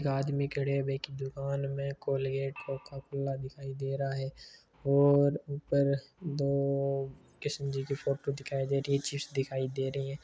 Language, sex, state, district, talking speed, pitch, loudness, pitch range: Hindi, male, Rajasthan, Churu, 170 wpm, 140 Hz, -33 LUFS, 135-140 Hz